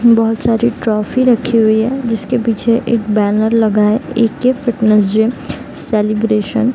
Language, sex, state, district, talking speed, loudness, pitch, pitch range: Hindi, female, Bihar, East Champaran, 150 wpm, -14 LUFS, 225 Hz, 215-240 Hz